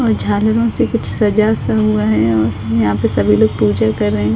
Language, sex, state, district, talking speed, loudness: Hindi, female, Uttar Pradesh, Budaun, 220 wpm, -14 LUFS